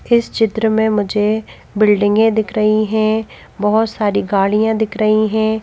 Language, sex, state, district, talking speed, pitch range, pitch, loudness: Hindi, female, Madhya Pradesh, Bhopal, 150 wpm, 210-220 Hz, 215 Hz, -15 LUFS